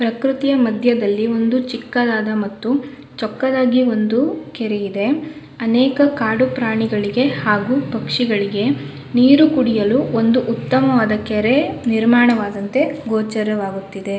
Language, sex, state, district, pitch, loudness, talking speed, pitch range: Kannada, female, Karnataka, Shimoga, 230 Hz, -17 LUFS, 90 wpm, 215-260 Hz